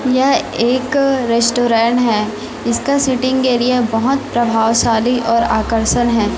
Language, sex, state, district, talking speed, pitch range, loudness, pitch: Hindi, female, Chhattisgarh, Raipur, 115 wpm, 230-255 Hz, -15 LUFS, 240 Hz